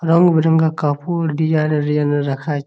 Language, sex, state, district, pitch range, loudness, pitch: Bengali, male, West Bengal, Jhargram, 145-160 Hz, -17 LUFS, 155 Hz